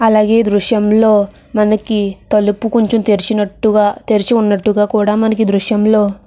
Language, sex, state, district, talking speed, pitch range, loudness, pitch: Telugu, female, Andhra Pradesh, Krishna, 115 wpm, 205-220 Hz, -13 LUFS, 215 Hz